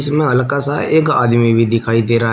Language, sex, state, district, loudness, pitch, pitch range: Hindi, male, Uttar Pradesh, Shamli, -14 LUFS, 120 Hz, 115-145 Hz